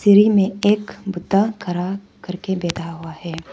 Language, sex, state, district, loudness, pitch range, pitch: Hindi, female, Arunachal Pradesh, Papum Pare, -20 LUFS, 170-205 Hz, 190 Hz